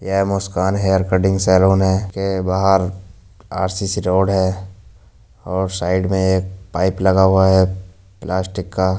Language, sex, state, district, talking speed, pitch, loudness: Hindi, male, Uttar Pradesh, Jyotiba Phule Nagar, 145 wpm, 95 Hz, -17 LUFS